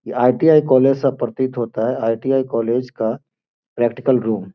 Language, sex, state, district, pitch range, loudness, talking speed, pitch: Hindi, male, Bihar, Gopalganj, 115-130 Hz, -18 LUFS, 170 wpm, 125 Hz